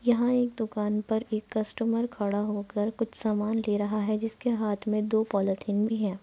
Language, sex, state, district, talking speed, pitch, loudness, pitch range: Hindi, female, Uttar Pradesh, Muzaffarnagar, 200 wpm, 215 Hz, -29 LUFS, 210-225 Hz